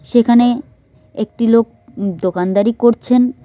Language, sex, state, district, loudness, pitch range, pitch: Bengali, female, West Bengal, Cooch Behar, -15 LUFS, 210-245 Hz, 235 Hz